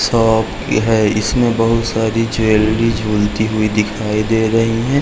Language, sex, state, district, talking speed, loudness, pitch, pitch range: Hindi, male, Chhattisgarh, Raigarh, 145 wpm, -15 LUFS, 110 Hz, 105-115 Hz